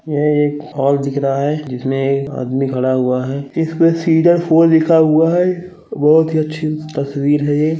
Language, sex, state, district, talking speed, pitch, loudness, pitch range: Hindi, male, Chhattisgarh, Raigarh, 185 wpm, 150 Hz, -15 LUFS, 140-160 Hz